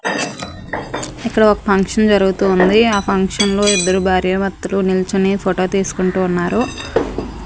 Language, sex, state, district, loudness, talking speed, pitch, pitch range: Telugu, female, Andhra Pradesh, Manyam, -16 LUFS, 115 wpm, 195 Hz, 185-205 Hz